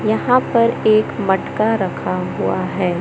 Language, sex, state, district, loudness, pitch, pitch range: Hindi, male, Madhya Pradesh, Katni, -17 LUFS, 215 Hz, 190-230 Hz